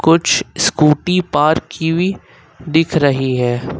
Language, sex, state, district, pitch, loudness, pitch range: Hindi, male, Uttar Pradesh, Lucknow, 160 Hz, -15 LUFS, 140-170 Hz